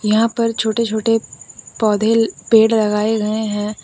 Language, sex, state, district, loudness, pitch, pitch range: Hindi, female, Jharkhand, Deoghar, -17 LUFS, 220 Hz, 210-225 Hz